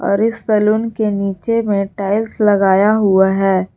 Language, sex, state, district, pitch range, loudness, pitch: Hindi, female, Jharkhand, Garhwa, 195-220 Hz, -15 LUFS, 205 Hz